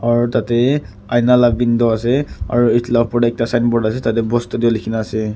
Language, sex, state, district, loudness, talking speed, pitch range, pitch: Nagamese, male, Nagaland, Kohima, -16 LUFS, 225 wpm, 115-120 Hz, 120 Hz